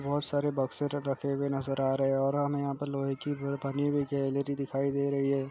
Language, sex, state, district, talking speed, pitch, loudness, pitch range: Hindi, male, Chhattisgarh, Jashpur, 240 wpm, 140 Hz, -31 LUFS, 135-145 Hz